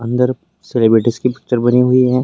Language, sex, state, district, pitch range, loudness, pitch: Hindi, male, Uttar Pradesh, Varanasi, 120-130 Hz, -14 LUFS, 125 Hz